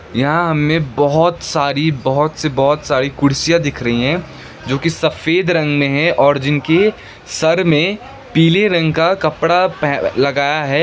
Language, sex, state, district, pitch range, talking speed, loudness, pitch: Hindi, male, West Bengal, Darjeeling, 140-165 Hz, 155 wpm, -15 LUFS, 150 Hz